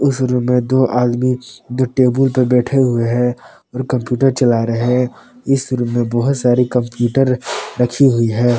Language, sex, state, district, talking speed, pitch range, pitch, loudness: Hindi, male, Jharkhand, Palamu, 175 wpm, 120-130 Hz, 125 Hz, -16 LUFS